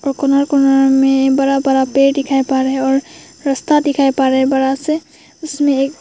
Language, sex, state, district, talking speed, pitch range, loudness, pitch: Hindi, female, Arunachal Pradesh, Papum Pare, 200 wpm, 270-285 Hz, -14 LUFS, 275 Hz